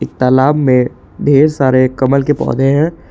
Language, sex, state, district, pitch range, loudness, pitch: Hindi, male, Jharkhand, Palamu, 130-145 Hz, -12 LUFS, 135 Hz